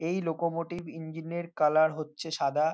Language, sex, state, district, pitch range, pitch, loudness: Bengali, male, West Bengal, North 24 Parganas, 155-170 Hz, 160 Hz, -30 LUFS